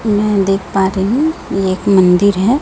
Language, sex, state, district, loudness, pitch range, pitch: Hindi, male, Chhattisgarh, Raipur, -13 LUFS, 190-215 Hz, 195 Hz